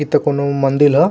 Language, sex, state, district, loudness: Bhojpuri, male, Bihar, Gopalganj, -15 LUFS